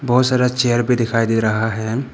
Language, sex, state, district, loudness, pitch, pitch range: Hindi, male, Arunachal Pradesh, Papum Pare, -17 LUFS, 120 Hz, 115-125 Hz